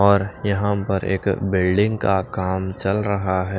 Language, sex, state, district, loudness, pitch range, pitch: Hindi, male, Maharashtra, Washim, -21 LUFS, 95-100 Hz, 95 Hz